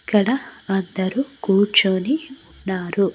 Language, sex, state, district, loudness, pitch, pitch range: Telugu, female, Andhra Pradesh, Annamaya, -20 LUFS, 205 Hz, 190-270 Hz